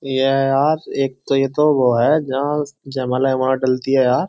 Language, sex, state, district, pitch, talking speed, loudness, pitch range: Hindi, male, Uttar Pradesh, Jyotiba Phule Nagar, 135 Hz, 210 wpm, -18 LUFS, 130-140 Hz